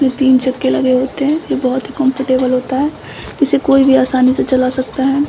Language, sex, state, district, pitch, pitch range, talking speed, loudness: Hindi, female, Bihar, Samastipur, 260 Hz, 255-275 Hz, 225 wpm, -14 LUFS